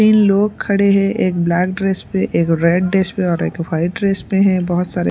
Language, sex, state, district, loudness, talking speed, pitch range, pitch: Hindi, female, Punjab, Pathankot, -16 LUFS, 245 wpm, 175-195 Hz, 190 Hz